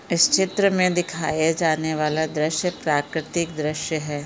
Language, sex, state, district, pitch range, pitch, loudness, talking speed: Hindi, female, Chhattisgarh, Bilaspur, 155-175 Hz, 160 Hz, -22 LUFS, 140 wpm